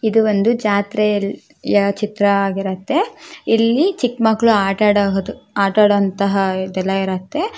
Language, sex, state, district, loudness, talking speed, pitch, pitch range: Kannada, female, Karnataka, Shimoga, -17 LUFS, 105 wpm, 205 Hz, 195-225 Hz